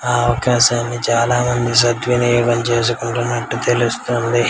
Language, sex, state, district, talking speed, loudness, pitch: Telugu, male, Telangana, Karimnagar, 95 wpm, -16 LUFS, 120 Hz